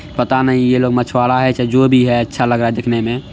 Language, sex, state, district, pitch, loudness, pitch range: Hindi, male, Bihar, Araria, 125 Hz, -14 LUFS, 120-130 Hz